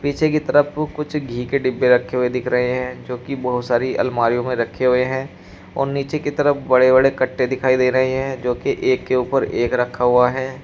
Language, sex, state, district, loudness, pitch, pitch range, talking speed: Hindi, male, Uttar Pradesh, Shamli, -19 LUFS, 130 Hz, 125-140 Hz, 230 wpm